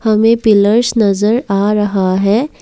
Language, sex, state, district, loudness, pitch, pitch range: Hindi, female, Assam, Kamrup Metropolitan, -12 LUFS, 210 Hz, 200-225 Hz